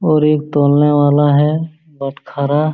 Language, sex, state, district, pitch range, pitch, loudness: Hindi, male, Jharkhand, Jamtara, 145-155 Hz, 150 Hz, -14 LUFS